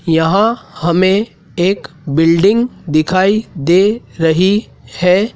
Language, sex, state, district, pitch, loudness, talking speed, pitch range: Hindi, male, Madhya Pradesh, Dhar, 185 Hz, -14 LUFS, 90 wpm, 165-205 Hz